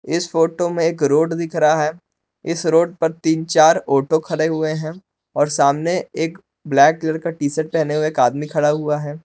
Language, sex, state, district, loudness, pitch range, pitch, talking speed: Hindi, male, Jharkhand, Palamu, -18 LUFS, 150-165 Hz, 160 Hz, 195 wpm